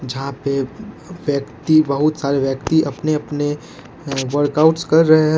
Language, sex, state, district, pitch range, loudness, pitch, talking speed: Hindi, male, Jharkhand, Ranchi, 135-155 Hz, -18 LUFS, 145 Hz, 135 wpm